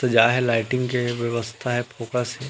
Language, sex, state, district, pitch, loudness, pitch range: Chhattisgarhi, male, Chhattisgarh, Rajnandgaon, 120 Hz, -23 LUFS, 115-125 Hz